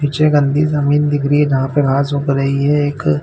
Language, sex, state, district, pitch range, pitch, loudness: Hindi, male, Chhattisgarh, Bilaspur, 140-145 Hz, 145 Hz, -15 LUFS